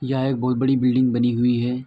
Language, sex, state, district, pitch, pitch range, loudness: Hindi, male, Uttar Pradesh, Etah, 125 Hz, 120-130 Hz, -20 LUFS